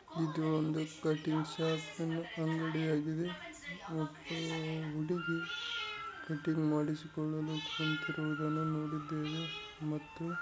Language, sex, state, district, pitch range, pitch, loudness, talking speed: Kannada, male, Karnataka, Raichur, 155-165 Hz, 155 Hz, -37 LUFS, 75 wpm